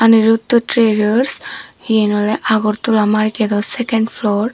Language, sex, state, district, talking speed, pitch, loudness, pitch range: Chakma, female, Tripura, Dhalai, 105 wpm, 220 Hz, -15 LUFS, 210-225 Hz